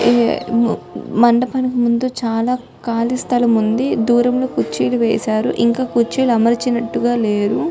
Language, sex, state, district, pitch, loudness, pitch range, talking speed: Telugu, female, Telangana, Karimnagar, 235 Hz, -17 LUFS, 230-245 Hz, 95 wpm